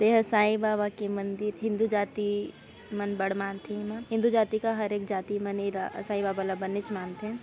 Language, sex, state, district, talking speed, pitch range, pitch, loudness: Chhattisgarhi, female, Chhattisgarh, Raigarh, 195 wpm, 200-215 Hz, 205 Hz, -29 LUFS